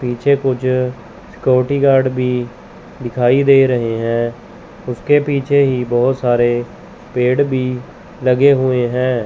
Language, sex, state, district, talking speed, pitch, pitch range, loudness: Hindi, male, Chandigarh, Chandigarh, 125 wpm, 125 Hz, 120-135 Hz, -15 LUFS